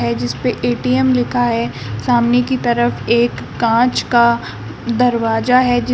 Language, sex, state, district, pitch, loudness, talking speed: Hindi, female, Uttar Pradesh, Shamli, 235 Hz, -16 LUFS, 140 wpm